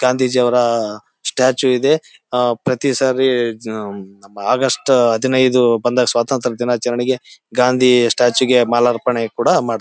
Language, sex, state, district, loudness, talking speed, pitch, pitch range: Kannada, male, Karnataka, Bellary, -16 LUFS, 110 wpm, 125 Hz, 120-130 Hz